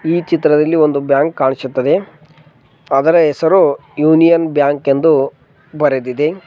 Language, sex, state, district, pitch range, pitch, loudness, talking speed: Kannada, male, Karnataka, Koppal, 140-160 Hz, 150 Hz, -13 LUFS, 100 wpm